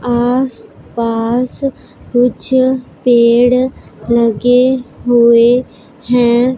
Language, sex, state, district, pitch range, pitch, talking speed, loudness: Hindi, female, Punjab, Pathankot, 235-255 Hz, 245 Hz, 65 wpm, -13 LUFS